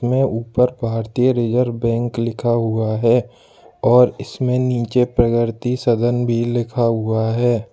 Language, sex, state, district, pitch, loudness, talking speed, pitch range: Hindi, male, Jharkhand, Ranchi, 120 Hz, -18 LUFS, 130 wpm, 115-125 Hz